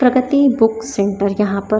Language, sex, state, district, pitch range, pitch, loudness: Hindi, female, Maharashtra, Chandrapur, 200-255 Hz, 225 Hz, -16 LUFS